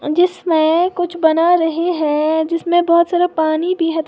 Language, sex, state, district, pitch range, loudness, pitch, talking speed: Hindi, female, Uttar Pradesh, Lalitpur, 320-350 Hz, -15 LUFS, 335 Hz, 175 wpm